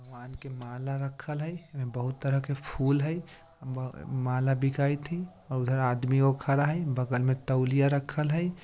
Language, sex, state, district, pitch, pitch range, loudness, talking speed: Bajjika, male, Bihar, Vaishali, 135 Hz, 130-150 Hz, -29 LUFS, 175 wpm